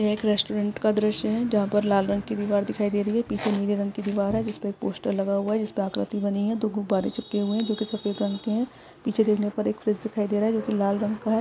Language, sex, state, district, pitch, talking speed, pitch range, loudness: Hindi, female, Uttar Pradesh, Etah, 210 Hz, 310 wpm, 205-220 Hz, -26 LUFS